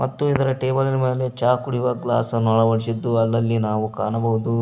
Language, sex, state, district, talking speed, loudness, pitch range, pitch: Kannada, male, Karnataka, Koppal, 155 wpm, -21 LUFS, 115-130 Hz, 115 Hz